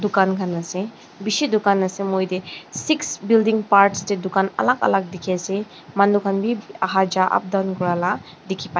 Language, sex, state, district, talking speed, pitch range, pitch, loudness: Nagamese, female, Nagaland, Dimapur, 185 wpm, 185-205 Hz, 195 Hz, -21 LUFS